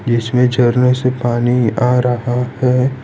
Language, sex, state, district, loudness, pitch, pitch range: Hindi, male, Gujarat, Valsad, -15 LUFS, 125 Hz, 120-125 Hz